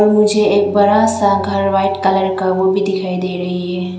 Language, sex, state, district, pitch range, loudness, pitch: Hindi, female, Arunachal Pradesh, Lower Dibang Valley, 185-205 Hz, -15 LUFS, 195 Hz